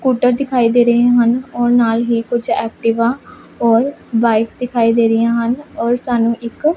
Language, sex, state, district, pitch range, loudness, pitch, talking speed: Punjabi, female, Punjab, Pathankot, 230-250 Hz, -15 LUFS, 235 Hz, 175 wpm